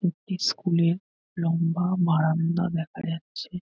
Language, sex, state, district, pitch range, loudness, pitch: Bengali, male, West Bengal, North 24 Parganas, 165-180 Hz, -26 LUFS, 170 Hz